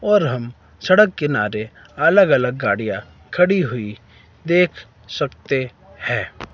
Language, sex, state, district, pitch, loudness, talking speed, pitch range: Hindi, male, Himachal Pradesh, Shimla, 120 Hz, -19 LUFS, 110 wpm, 105-170 Hz